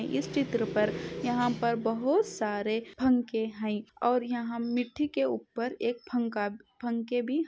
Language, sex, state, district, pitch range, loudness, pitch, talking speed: Hindi, female, Jharkhand, Sahebganj, 220-245 Hz, -30 LUFS, 235 Hz, 150 wpm